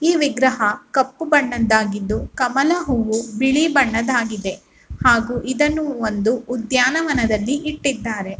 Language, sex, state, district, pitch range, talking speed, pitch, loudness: Kannada, female, Karnataka, Bellary, 220-280 Hz, 95 wpm, 250 Hz, -19 LUFS